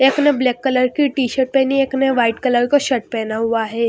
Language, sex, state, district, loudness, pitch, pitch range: Hindi, female, Haryana, Jhajjar, -17 LUFS, 255 Hz, 235-270 Hz